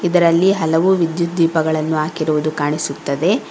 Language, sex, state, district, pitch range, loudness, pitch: Kannada, female, Karnataka, Bangalore, 155-175 Hz, -17 LUFS, 165 Hz